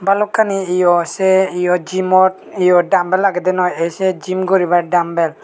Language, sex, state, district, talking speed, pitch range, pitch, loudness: Chakma, male, Tripura, Unakoti, 165 wpm, 175-190 Hz, 185 Hz, -15 LUFS